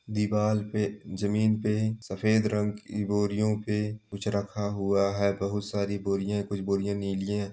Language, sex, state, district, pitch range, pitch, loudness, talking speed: Hindi, male, West Bengal, Malda, 100-105 Hz, 105 Hz, -29 LUFS, 165 wpm